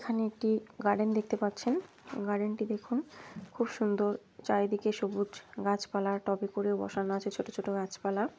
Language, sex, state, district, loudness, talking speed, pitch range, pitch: Bengali, female, West Bengal, Malda, -33 LUFS, 145 wpm, 200-220 Hz, 205 Hz